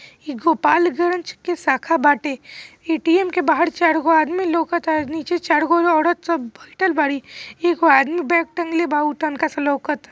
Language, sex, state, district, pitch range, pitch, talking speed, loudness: Bhojpuri, female, Bihar, East Champaran, 300-345 Hz, 325 Hz, 180 wpm, -19 LUFS